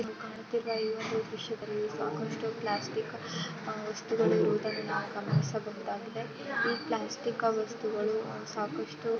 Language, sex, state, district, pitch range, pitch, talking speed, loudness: Kannada, female, Karnataka, Shimoga, 215-230 Hz, 220 Hz, 105 wpm, -33 LUFS